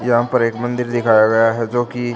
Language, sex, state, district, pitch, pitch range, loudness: Hindi, male, Haryana, Charkhi Dadri, 120 Hz, 115-120 Hz, -16 LUFS